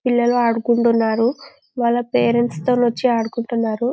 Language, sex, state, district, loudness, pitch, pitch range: Telugu, female, Telangana, Karimnagar, -18 LUFS, 235 Hz, 225-245 Hz